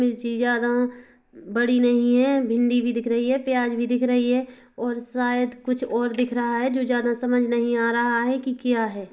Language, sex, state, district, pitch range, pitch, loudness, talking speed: Hindi, female, Chhattisgarh, Kabirdham, 240-250 Hz, 245 Hz, -23 LUFS, 210 wpm